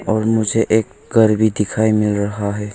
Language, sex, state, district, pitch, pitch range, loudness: Hindi, male, Arunachal Pradesh, Longding, 110 Hz, 105-110 Hz, -17 LUFS